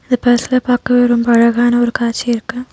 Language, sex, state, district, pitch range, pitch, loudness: Tamil, female, Tamil Nadu, Nilgiris, 235-250 Hz, 245 Hz, -13 LUFS